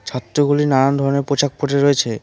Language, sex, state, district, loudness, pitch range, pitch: Bengali, male, West Bengal, Cooch Behar, -17 LUFS, 135-145 Hz, 140 Hz